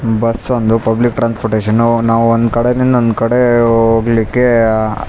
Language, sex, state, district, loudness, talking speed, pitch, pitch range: Kannada, male, Karnataka, Raichur, -12 LUFS, 155 wpm, 115 Hz, 115-120 Hz